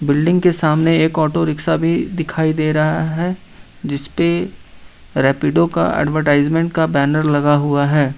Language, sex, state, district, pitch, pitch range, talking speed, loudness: Hindi, male, Jharkhand, Ranchi, 155 Hz, 145-165 Hz, 145 wpm, -16 LUFS